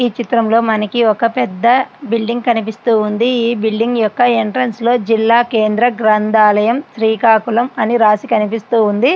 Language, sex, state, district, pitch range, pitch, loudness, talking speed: Telugu, female, Andhra Pradesh, Srikakulam, 220-240 Hz, 230 Hz, -14 LUFS, 130 wpm